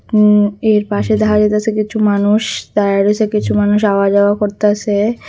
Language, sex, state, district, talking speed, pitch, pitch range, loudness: Bengali, female, Tripura, West Tripura, 160 wpm, 210 Hz, 205-215 Hz, -13 LUFS